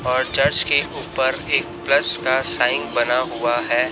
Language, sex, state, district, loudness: Hindi, male, Chhattisgarh, Raipur, -16 LUFS